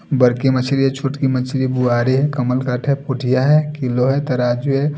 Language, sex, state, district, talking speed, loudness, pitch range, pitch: Hindi, male, Delhi, New Delhi, 195 wpm, -17 LUFS, 125-135 Hz, 130 Hz